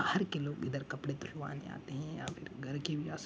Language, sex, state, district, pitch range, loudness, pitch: Hindi, male, Uttar Pradesh, Gorakhpur, 140-160 Hz, -40 LUFS, 145 Hz